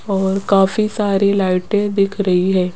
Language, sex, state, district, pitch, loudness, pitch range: Hindi, female, Rajasthan, Jaipur, 195 Hz, -16 LUFS, 190-205 Hz